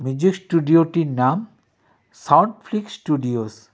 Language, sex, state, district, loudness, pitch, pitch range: Bengali, male, West Bengal, Darjeeling, -20 LUFS, 165 Hz, 130-190 Hz